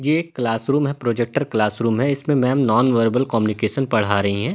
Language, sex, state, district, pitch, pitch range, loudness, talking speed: Hindi, male, Delhi, New Delhi, 120 Hz, 110-140 Hz, -19 LUFS, 185 wpm